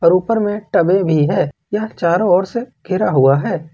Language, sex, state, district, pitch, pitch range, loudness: Hindi, male, Jharkhand, Ranchi, 185 Hz, 170-210 Hz, -16 LUFS